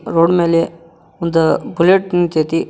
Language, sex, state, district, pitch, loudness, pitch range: Kannada, male, Karnataka, Koppal, 165 Hz, -15 LUFS, 165-175 Hz